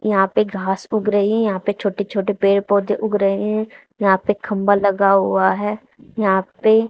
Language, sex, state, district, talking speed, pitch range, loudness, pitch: Hindi, female, Haryana, Charkhi Dadri, 200 wpm, 195-215 Hz, -18 LUFS, 205 Hz